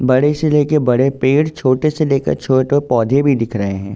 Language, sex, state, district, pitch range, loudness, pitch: Hindi, male, Uttar Pradesh, Ghazipur, 125-150 Hz, -15 LUFS, 135 Hz